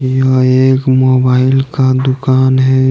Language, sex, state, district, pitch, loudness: Hindi, male, Jharkhand, Deoghar, 130 Hz, -11 LUFS